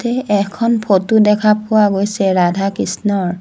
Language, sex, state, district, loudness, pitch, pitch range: Assamese, female, Assam, Sonitpur, -15 LUFS, 205 Hz, 195-215 Hz